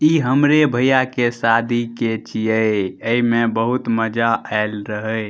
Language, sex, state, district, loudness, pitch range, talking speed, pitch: Maithili, male, Bihar, Madhepura, -18 LUFS, 110-120 Hz, 135 wpm, 115 Hz